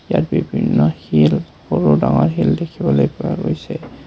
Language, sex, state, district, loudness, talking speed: Assamese, male, Assam, Kamrup Metropolitan, -17 LUFS, 135 wpm